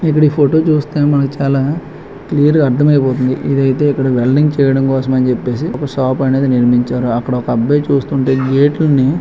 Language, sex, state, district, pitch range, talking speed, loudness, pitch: Telugu, male, Andhra Pradesh, Krishna, 130-145 Hz, 180 wpm, -13 LUFS, 135 Hz